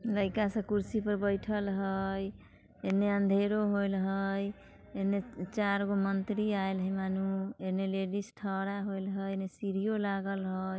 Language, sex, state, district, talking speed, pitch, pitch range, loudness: Bajjika, female, Bihar, Vaishali, 140 wpm, 195 Hz, 195-205 Hz, -33 LUFS